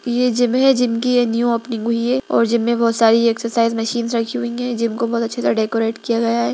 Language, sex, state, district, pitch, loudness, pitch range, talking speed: Hindi, female, Bihar, Gaya, 235 Hz, -18 LUFS, 230-240 Hz, 265 wpm